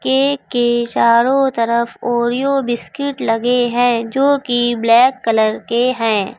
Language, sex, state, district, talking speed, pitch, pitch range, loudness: Hindi, female, Uttar Pradesh, Lucknow, 130 wpm, 240 Hz, 230-260 Hz, -15 LUFS